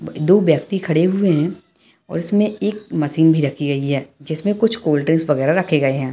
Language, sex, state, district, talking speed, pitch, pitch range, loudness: Hindi, male, Bihar, Darbhanga, 195 wpm, 160 Hz, 145-190 Hz, -18 LUFS